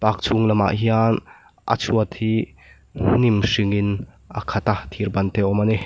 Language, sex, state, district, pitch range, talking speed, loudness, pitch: Mizo, male, Mizoram, Aizawl, 100-110 Hz, 175 wpm, -21 LUFS, 105 Hz